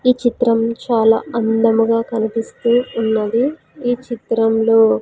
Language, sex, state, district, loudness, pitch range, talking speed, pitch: Telugu, female, Andhra Pradesh, Sri Satya Sai, -17 LUFS, 225-240 Hz, 95 wpm, 230 Hz